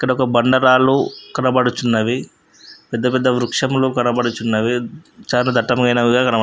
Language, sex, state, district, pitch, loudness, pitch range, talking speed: Telugu, male, Andhra Pradesh, Guntur, 125 Hz, -17 LUFS, 120-130 Hz, 100 wpm